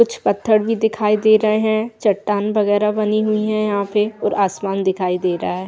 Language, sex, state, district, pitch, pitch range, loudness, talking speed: Hindi, female, Bihar, Madhepura, 210 Hz, 200-215 Hz, -18 LUFS, 210 wpm